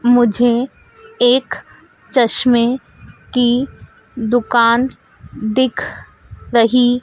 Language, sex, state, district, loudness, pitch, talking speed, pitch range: Hindi, female, Madhya Pradesh, Dhar, -15 LUFS, 245 Hz, 60 wpm, 235-255 Hz